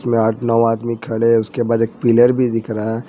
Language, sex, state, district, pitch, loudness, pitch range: Hindi, male, Jharkhand, Ranchi, 115 Hz, -16 LUFS, 115-120 Hz